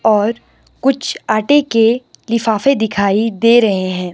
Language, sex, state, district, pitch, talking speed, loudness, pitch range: Hindi, female, Himachal Pradesh, Shimla, 225 Hz, 130 wpm, -14 LUFS, 210-235 Hz